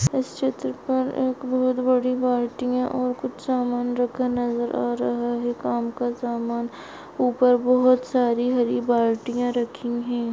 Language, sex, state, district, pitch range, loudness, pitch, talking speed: Hindi, female, Maharashtra, Solapur, 235-250 Hz, -23 LUFS, 245 Hz, 145 wpm